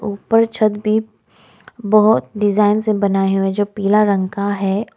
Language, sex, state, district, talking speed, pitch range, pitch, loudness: Hindi, female, Arunachal Pradesh, Lower Dibang Valley, 155 wpm, 200-215 Hz, 205 Hz, -16 LUFS